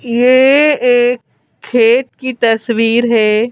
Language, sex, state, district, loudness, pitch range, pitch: Hindi, female, Madhya Pradesh, Bhopal, -11 LUFS, 230-255 Hz, 240 Hz